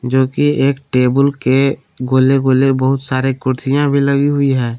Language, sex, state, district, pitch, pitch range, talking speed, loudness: Hindi, male, Jharkhand, Palamu, 135 Hz, 130-140 Hz, 165 wpm, -14 LUFS